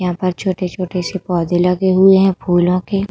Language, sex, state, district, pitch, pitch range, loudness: Hindi, female, Uttar Pradesh, Budaun, 185 Hz, 180-190 Hz, -15 LUFS